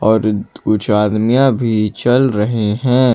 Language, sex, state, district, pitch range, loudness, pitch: Hindi, male, Jharkhand, Ranchi, 105-125 Hz, -15 LUFS, 110 Hz